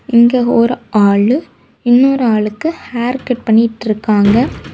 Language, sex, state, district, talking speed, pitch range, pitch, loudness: Tamil, female, Tamil Nadu, Kanyakumari, 100 wpm, 215-250 Hz, 235 Hz, -13 LUFS